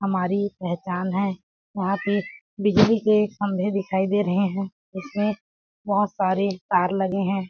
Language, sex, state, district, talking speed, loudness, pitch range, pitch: Hindi, female, Chhattisgarh, Balrampur, 150 wpm, -23 LUFS, 190-205 Hz, 195 Hz